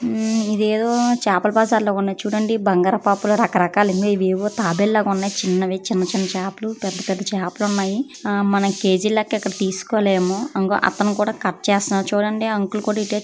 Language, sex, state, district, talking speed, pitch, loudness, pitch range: Telugu, female, Andhra Pradesh, Chittoor, 175 wpm, 205 Hz, -19 LUFS, 195-215 Hz